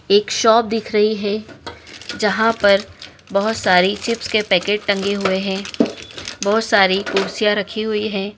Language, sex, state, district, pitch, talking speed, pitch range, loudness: Hindi, female, Madhya Pradesh, Dhar, 205 Hz, 150 wpm, 200-220 Hz, -18 LUFS